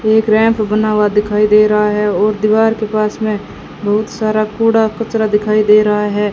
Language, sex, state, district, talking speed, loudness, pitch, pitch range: Hindi, female, Rajasthan, Bikaner, 200 wpm, -13 LUFS, 215 Hz, 210-220 Hz